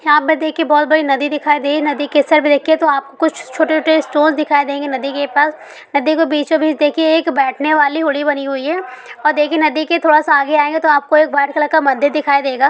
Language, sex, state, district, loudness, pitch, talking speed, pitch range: Hindi, female, Bihar, Sitamarhi, -14 LUFS, 300 Hz, 260 wpm, 285-315 Hz